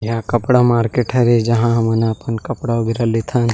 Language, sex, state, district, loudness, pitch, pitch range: Chhattisgarhi, male, Chhattisgarh, Rajnandgaon, -16 LUFS, 115 Hz, 115-120 Hz